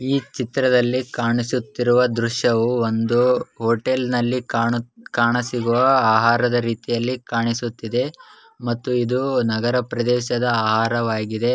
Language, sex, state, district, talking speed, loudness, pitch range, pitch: Kannada, male, Karnataka, Bellary, 85 wpm, -20 LUFS, 115-125 Hz, 120 Hz